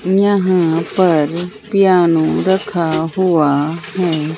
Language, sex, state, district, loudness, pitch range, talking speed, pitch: Hindi, female, Bihar, Katihar, -15 LUFS, 160-190 Hz, 80 wpm, 175 Hz